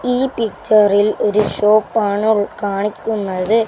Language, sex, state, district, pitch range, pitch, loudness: Malayalam, male, Kerala, Kasaragod, 205-220 Hz, 210 Hz, -16 LUFS